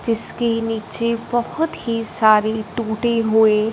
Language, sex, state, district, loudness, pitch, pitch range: Hindi, female, Punjab, Fazilka, -18 LUFS, 225 Hz, 220-235 Hz